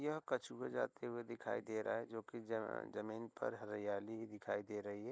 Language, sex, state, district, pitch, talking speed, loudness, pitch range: Hindi, male, Uttar Pradesh, Hamirpur, 110 Hz, 200 wpm, -45 LUFS, 105-115 Hz